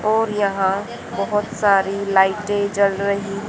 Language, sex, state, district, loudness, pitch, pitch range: Hindi, female, Haryana, Jhajjar, -19 LUFS, 200 Hz, 195-210 Hz